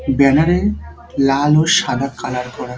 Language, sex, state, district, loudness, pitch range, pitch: Bengali, male, West Bengal, Dakshin Dinajpur, -16 LUFS, 120-145 Hz, 135 Hz